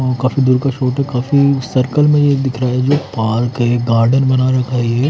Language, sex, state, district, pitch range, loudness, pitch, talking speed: Hindi, male, Haryana, Charkhi Dadri, 125-135 Hz, -14 LUFS, 130 Hz, 235 wpm